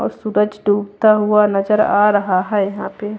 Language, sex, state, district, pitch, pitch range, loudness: Hindi, female, Haryana, Jhajjar, 210 Hz, 205-210 Hz, -16 LUFS